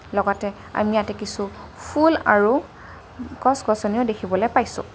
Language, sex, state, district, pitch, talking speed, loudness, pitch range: Assamese, female, Assam, Kamrup Metropolitan, 210 Hz, 110 wpm, -21 LUFS, 205-245 Hz